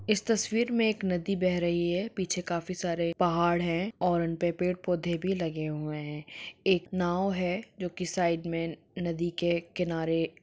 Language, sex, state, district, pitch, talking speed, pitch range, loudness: Hindi, female, Jharkhand, Sahebganj, 175 Hz, 185 wpm, 170-185 Hz, -30 LUFS